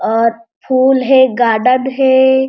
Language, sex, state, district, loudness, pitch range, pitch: Chhattisgarhi, female, Chhattisgarh, Jashpur, -12 LUFS, 230-265 Hz, 260 Hz